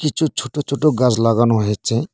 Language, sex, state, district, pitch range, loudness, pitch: Bengali, male, West Bengal, Cooch Behar, 115-150 Hz, -17 LUFS, 130 Hz